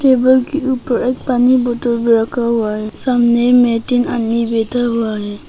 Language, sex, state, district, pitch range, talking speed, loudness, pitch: Hindi, female, Arunachal Pradesh, Papum Pare, 230-250 Hz, 185 wpm, -15 LUFS, 240 Hz